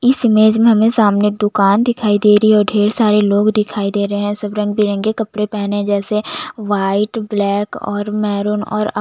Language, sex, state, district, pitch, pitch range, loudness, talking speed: Hindi, female, Chhattisgarh, Jashpur, 210 Hz, 205-215 Hz, -15 LUFS, 185 wpm